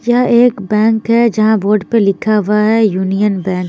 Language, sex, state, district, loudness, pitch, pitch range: Hindi, female, Bihar, Patna, -12 LUFS, 215 Hz, 200-225 Hz